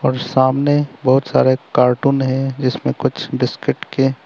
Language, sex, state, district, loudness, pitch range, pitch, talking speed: Hindi, male, Arunachal Pradesh, Lower Dibang Valley, -17 LUFS, 130-140 Hz, 135 Hz, 140 wpm